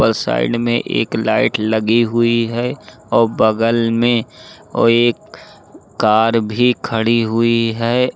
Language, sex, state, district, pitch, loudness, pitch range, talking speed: Hindi, male, Uttar Pradesh, Lucknow, 115 Hz, -16 LUFS, 110-120 Hz, 130 wpm